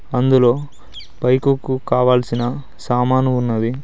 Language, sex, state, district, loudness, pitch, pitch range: Telugu, male, Telangana, Mahabubabad, -17 LUFS, 125 Hz, 125-130 Hz